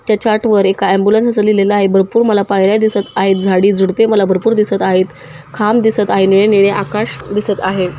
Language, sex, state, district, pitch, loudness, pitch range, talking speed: Marathi, female, Maharashtra, Sindhudurg, 200 Hz, -12 LUFS, 195-215 Hz, 195 wpm